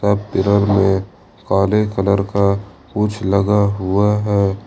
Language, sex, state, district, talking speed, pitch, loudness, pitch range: Hindi, male, Jharkhand, Ranchi, 130 wpm, 100 Hz, -17 LUFS, 95-100 Hz